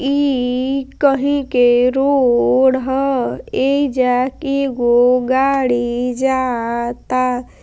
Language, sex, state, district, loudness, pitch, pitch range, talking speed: Bhojpuri, female, Uttar Pradesh, Gorakhpur, -16 LUFS, 260 Hz, 245-275 Hz, 80 wpm